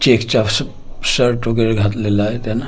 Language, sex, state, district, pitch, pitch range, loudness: Marathi, male, Maharashtra, Gondia, 115 Hz, 110-120 Hz, -16 LUFS